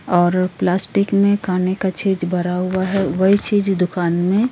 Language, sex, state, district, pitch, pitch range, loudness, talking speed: Hindi, female, Bihar, Darbhanga, 185 Hz, 180-200 Hz, -17 LUFS, 185 wpm